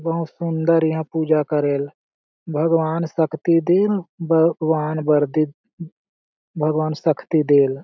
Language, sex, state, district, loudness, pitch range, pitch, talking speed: Sadri, male, Chhattisgarh, Jashpur, -20 LUFS, 155-165 Hz, 160 Hz, 105 wpm